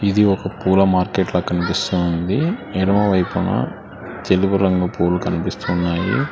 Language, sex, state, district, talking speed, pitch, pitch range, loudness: Telugu, male, Telangana, Hyderabad, 115 wpm, 95 Hz, 90-100 Hz, -19 LUFS